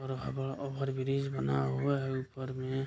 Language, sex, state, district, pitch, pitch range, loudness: Hindi, male, Bihar, Kishanganj, 135 Hz, 130-135 Hz, -34 LUFS